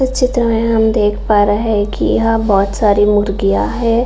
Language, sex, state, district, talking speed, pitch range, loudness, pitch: Hindi, female, Bihar, Saran, 220 wpm, 205-230 Hz, -14 LUFS, 215 Hz